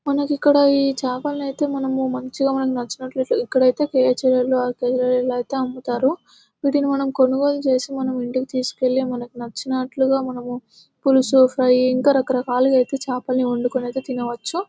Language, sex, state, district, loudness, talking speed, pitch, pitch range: Telugu, female, Telangana, Nalgonda, -20 LUFS, 145 wpm, 260 Hz, 250-275 Hz